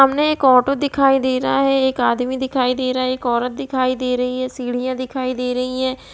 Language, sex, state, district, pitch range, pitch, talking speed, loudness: Hindi, female, Bihar, East Champaran, 250-270 Hz, 255 Hz, 235 wpm, -18 LUFS